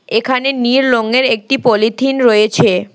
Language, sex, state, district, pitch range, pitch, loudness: Bengali, female, West Bengal, Alipurduar, 215-260 Hz, 240 Hz, -12 LUFS